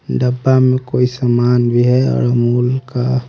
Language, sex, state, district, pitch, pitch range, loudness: Hindi, male, Haryana, Rohtak, 125 Hz, 120-130 Hz, -14 LUFS